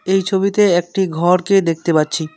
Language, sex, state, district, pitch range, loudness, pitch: Bengali, male, West Bengal, Alipurduar, 165-195 Hz, -16 LUFS, 180 Hz